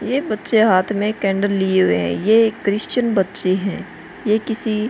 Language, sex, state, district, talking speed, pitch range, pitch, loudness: Hindi, female, Uttar Pradesh, Hamirpur, 185 wpm, 190-220 Hz, 205 Hz, -18 LUFS